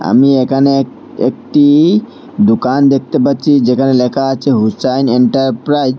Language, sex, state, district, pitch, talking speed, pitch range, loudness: Bengali, male, Assam, Hailakandi, 135 Hz, 130 wpm, 130-145 Hz, -11 LUFS